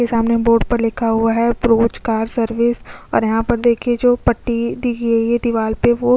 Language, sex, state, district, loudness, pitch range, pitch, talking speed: Hindi, female, Chhattisgarh, Sukma, -17 LUFS, 230-240 Hz, 235 Hz, 235 wpm